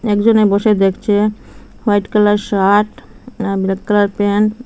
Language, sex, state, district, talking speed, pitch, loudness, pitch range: Bengali, female, Assam, Hailakandi, 140 wpm, 205 Hz, -15 LUFS, 200-215 Hz